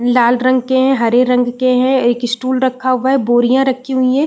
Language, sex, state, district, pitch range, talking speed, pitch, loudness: Hindi, female, Uttarakhand, Uttarkashi, 245-260 Hz, 240 wpm, 255 Hz, -14 LUFS